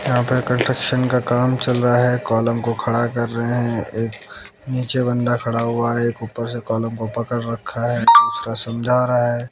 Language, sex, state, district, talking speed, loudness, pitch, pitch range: Hindi, male, Haryana, Jhajjar, 200 wpm, -19 LUFS, 120 Hz, 115-125 Hz